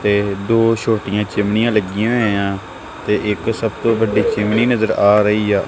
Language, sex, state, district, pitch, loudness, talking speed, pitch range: Punjabi, male, Punjab, Kapurthala, 105 Hz, -16 LUFS, 170 wpm, 105-115 Hz